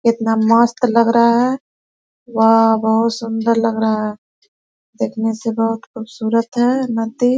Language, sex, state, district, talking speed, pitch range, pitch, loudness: Hindi, female, Chhattisgarh, Korba, 130 wpm, 225-235 Hz, 230 Hz, -16 LUFS